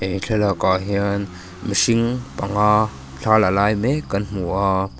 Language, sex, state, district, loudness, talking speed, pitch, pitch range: Mizo, male, Mizoram, Aizawl, -20 LUFS, 145 wpm, 100 Hz, 95-110 Hz